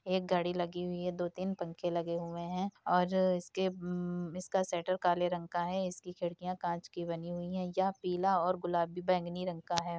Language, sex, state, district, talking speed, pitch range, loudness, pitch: Hindi, female, Uttar Pradesh, Deoria, 210 wpm, 175-185 Hz, -35 LUFS, 180 Hz